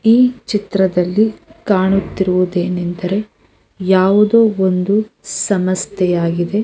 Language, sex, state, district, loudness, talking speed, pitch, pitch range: Kannada, female, Karnataka, Dharwad, -15 LUFS, 65 wpm, 190 Hz, 180-210 Hz